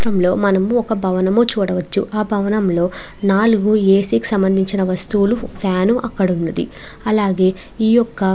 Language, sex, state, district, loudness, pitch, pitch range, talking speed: Telugu, female, Andhra Pradesh, Chittoor, -16 LUFS, 200 Hz, 190-220 Hz, 145 wpm